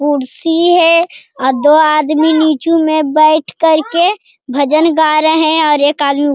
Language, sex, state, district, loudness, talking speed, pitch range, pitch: Hindi, female, Bihar, Jamui, -11 LUFS, 150 wpm, 290-325 Hz, 310 Hz